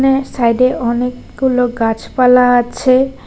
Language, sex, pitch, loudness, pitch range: Bengali, female, 250 Hz, -14 LUFS, 240-255 Hz